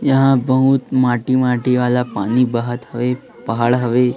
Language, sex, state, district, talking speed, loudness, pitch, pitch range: Hindi, female, Chhattisgarh, Raipur, 160 wpm, -17 LUFS, 125 Hz, 120-130 Hz